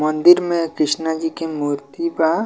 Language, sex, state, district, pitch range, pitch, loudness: Bhojpuri, male, Bihar, Muzaffarpur, 155-175 Hz, 160 Hz, -18 LUFS